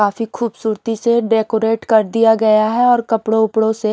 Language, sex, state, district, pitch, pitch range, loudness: Hindi, female, Haryana, Charkhi Dadri, 225 Hz, 220-230 Hz, -15 LUFS